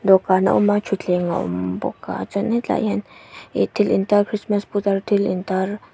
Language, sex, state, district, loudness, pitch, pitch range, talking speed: Mizo, female, Mizoram, Aizawl, -20 LUFS, 200 Hz, 185-205 Hz, 200 wpm